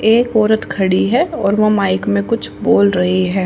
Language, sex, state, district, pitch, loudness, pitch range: Hindi, female, Haryana, Rohtak, 195 Hz, -15 LUFS, 180-215 Hz